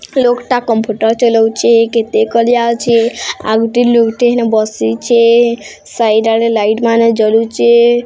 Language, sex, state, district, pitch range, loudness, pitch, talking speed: Odia, female, Odisha, Sambalpur, 220-235 Hz, -11 LUFS, 230 Hz, 125 wpm